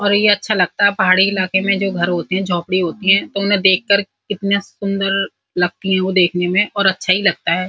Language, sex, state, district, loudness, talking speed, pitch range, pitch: Hindi, female, Uttar Pradesh, Muzaffarnagar, -16 LUFS, 240 wpm, 185-200 Hz, 190 Hz